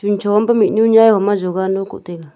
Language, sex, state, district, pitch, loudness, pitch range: Wancho, female, Arunachal Pradesh, Longding, 205 Hz, -14 LUFS, 190-215 Hz